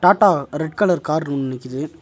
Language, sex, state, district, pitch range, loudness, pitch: Tamil, male, Tamil Nadu, Nilgiris, 140-170 Hz, -19 LUFS, 150 Hz